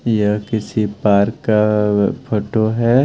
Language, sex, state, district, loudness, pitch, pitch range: Hindi, male, Haryana, Jhajjar, -17 LUFS, 105 Hz, 105-115 Hz